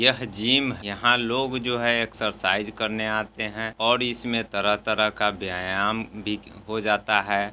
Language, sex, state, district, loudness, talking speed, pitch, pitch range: Hindi, male, Bihar, Sitamarhi, -24 LUFS, 160 wpm, 110 Hz, 105-120 Hz